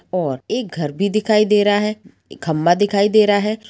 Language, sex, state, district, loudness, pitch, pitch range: Hindi, female, Bihar, Sitamarhi, -17 LUFS, 205 Hz, 180-215 Hz